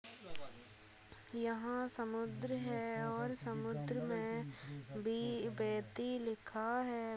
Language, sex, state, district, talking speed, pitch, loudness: Hindi, female, Goa, North and South Goa, 65 wpm, 220 Hz, -41 LUFS